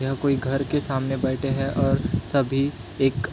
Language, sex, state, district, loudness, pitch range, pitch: Hindi, male, Maharashtra, Chandrapur, -24 LUFS, 130-135 Hz, 135 Hz